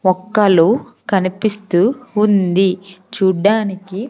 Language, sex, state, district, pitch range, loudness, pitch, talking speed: Telugu, female, Andhra Pradesh, Sri Satya Sai, 185-210 Hz, -16 LUFS, 195 Hz, 60 wpm